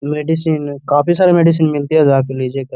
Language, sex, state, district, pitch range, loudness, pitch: Hindi, male, Bihar, Gaya, 140-160 Hz, -14 LUFS, 150 Hz